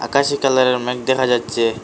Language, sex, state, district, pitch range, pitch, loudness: Bengali, male, Assam, Hailakandi, 120-130 Hz, 125 Hz, -17 LUFS